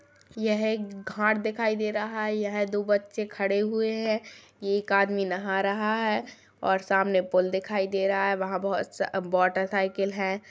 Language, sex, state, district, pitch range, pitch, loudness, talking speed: Kumaoni, female, Uttarakhand, Tehri Garhwal, 195-215 Hz, 200 Hz, -27 LUFS, 175 wpm